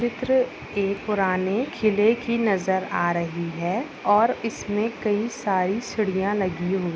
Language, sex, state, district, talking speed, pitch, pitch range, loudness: Hindi, female, Maharashtra, Nagpur, 140 wpm, 205 Hz, 190-225 Hz, -24 LUFS